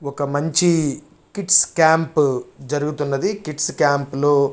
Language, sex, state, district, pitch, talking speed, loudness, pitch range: Telugu, male, Andhra Pradesh, Chittoor, 150 Hz, 105 wpm, -19 LUFS, 140-165 Hz